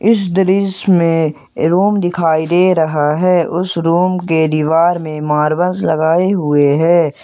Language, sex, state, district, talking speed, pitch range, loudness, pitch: Hindi, male, Jharkhand, Ranchi, 140 wpm, 155-185 Hz, -13 LUFS, 170 Hz